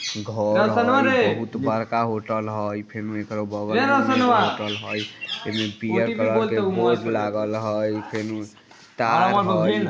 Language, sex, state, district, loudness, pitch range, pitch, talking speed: Bajjika, female, Bihar, Vaishali, -22 LUFS, 105-115 Hz, 110 Hz, 140 wpm